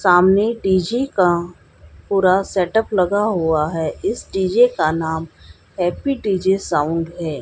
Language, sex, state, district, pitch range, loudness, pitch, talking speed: Hindi, female, Haryana, Jhajjar, 160-195 Hz, -18 LUFS, 180 Hz, 130 wpm